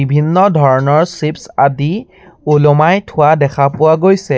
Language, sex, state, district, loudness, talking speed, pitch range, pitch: Assamese, male, Assam, Sonitpur, -11 LUFS, 125 wpm, 145-175 Hz, 155 Hz